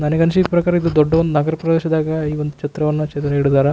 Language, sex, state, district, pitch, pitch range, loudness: Kannada, male, Karnataka, Raichur, 155 Hz, 150-165 Hz, -17 LUFS